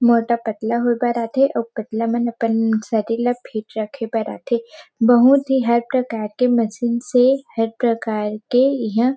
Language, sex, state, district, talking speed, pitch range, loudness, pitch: Chhattisgarhi, female, Chhattisgarh, Rajnandgaon, 175 wpm, 225-245 Hz, -19 LUFS, 235 Hz